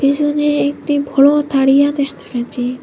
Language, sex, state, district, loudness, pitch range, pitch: Bengali, female, Assam, Hailakandi, -15 LUFS, 270-290 Hz, 285 Hz